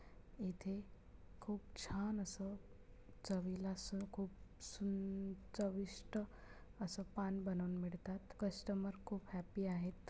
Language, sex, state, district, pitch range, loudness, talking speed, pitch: Marathi, female, Maharashtra, Pune, 190-200 Hz, -46 LUFS, 100 wpm, 195 Hz